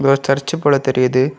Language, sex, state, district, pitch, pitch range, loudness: Tamil, male, Tamil Nadu, Kanyakumari, 135 Hz, 130-140 Hz, -16 LUFS